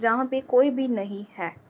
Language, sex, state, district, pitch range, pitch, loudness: Hindi, female, Uttar Pradesh, Varanasi, 200-265 Hz, 230 Hz, -25 LUFS